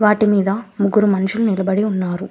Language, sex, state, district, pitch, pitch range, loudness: Telugu, female, Telangana, Hyderabad, 200 Hz, 195-210 Hz, -17 LUFS